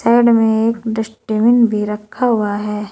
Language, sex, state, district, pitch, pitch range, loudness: Hindi, female, Uttar Pradesh, Saharanpur, 225 Hz, 210-230 Hz, -15 LUFS